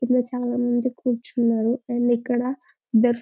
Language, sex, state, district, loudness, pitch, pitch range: Telugu, female, Telangana, Karimnagar, -23 LUFS, 245 Hz, 240-250 Hz